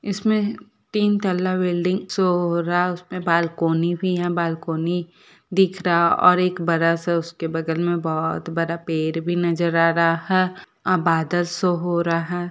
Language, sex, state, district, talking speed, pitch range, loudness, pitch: Hindi, female, Jharkhand, Sahebganj, 175 wpm, 165-180 Hz, -21 LUFS, 175 Hz